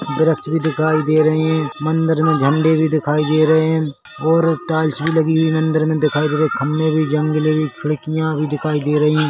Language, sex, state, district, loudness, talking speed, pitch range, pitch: Hindi, male, Chhattisgarh, Rajnandgaon, -17 LUFS, 225 wpm, 150-160 Hz, 155 Hz